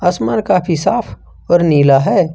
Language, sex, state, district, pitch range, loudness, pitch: Hindi, male, Jharkhand, Ranchi, 155-185 Hz, -13 LUFS, 175 Hz